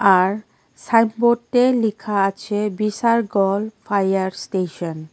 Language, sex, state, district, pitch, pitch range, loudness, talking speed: Bengali, female, Tripura, West Tripura, 205 Hz, 195-230 Hz, -20 LUFS, 80 wpm